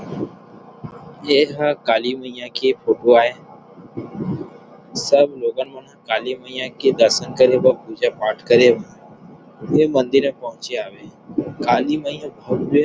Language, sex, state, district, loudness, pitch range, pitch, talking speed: Chhattisgarhi, male, Chhattisgarh, Rajnandgaon, -18 LUFS, 130-170 Hz, 135 Hz, 130 wpm